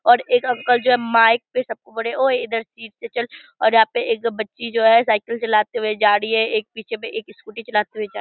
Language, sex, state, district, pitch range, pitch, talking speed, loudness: Hindi, female, Bihar, Purnia, 220-245 Hz, 230 Hz, 255 wpm, -19 LUFS